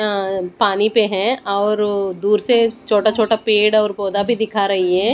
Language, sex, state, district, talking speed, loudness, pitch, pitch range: Hindi, female, Odisha, Nuapada, 185 wpm, -17 LUFS, 210 Hz, 200-220 Hz